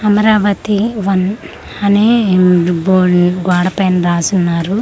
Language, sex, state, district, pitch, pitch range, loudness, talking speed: Telugu, female, Andhra Pradesh, Manyam, 190 Hz, 180-205 Hz, -12 LUFS, 110 wpm